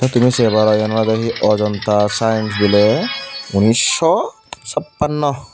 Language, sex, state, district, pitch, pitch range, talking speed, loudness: Chakma, female, Tripura, Unakoti, 110 Hz, 105-125 Hz, 130 wpm, -16 LUFS